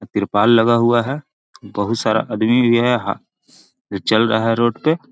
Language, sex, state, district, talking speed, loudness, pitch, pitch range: Magahi, male, Bihar, Jahanabad, 175 wpm, -17 LUFS, 115 Hz, 110-120 Hz